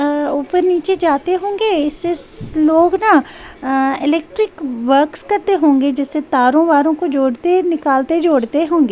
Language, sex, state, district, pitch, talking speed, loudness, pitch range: Hindi, female, Bihar, West Champaran, 310 Hz, 140 wpm, -15 LUFS, 280-360 Hz